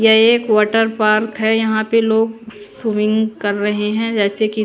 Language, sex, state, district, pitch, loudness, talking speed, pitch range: Hindi, female, Chandigarh, Chandigarh, 220 Hz, -16 LUFS, 180 wpm, 215-225 Hz